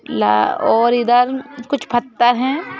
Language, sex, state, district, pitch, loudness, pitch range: Hindi, female, Madhya Pradesh, Bhopal, 245 Hz, -16 LUFS, 240-265 Hz